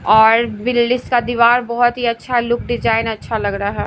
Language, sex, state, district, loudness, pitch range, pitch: Hindi, female, Bihar, Patna, -16 LUFS, 225-240 Hz, 235 Hz